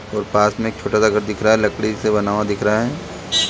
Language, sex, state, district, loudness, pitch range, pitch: Hindi, male, Chhattisgarh, Balrampur, -18 LUFS, 105-110 Hz, 105 Hz